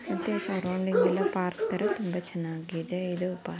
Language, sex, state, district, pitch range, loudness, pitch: Kannada, female, Karnataka, Dharwad, 175-190 Hz, -30 LUFS, 180 Hz